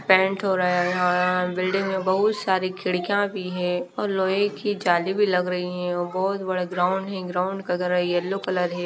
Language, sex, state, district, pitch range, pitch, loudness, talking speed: Hindi, female, Haryana, Charkhi Dadri, 180-195 Hz, 185 Hz, -23 LUFS, 205 wpm